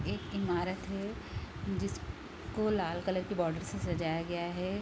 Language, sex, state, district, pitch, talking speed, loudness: Hindi, female, Bihar, Gopalganj, 175 Hz, 175 wpm, -36 LUFS